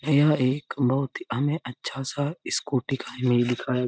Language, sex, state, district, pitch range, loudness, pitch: Hindi, male, Bihar, Lakhisarai, 125-145 Hz, -26 LUFS, 135 Hz